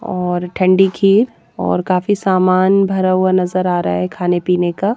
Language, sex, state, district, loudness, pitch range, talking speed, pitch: Hindi, female, Haryana, Jhajjar, -15 LUFS, 180-195 Hz, 155 wpm, 185 Hz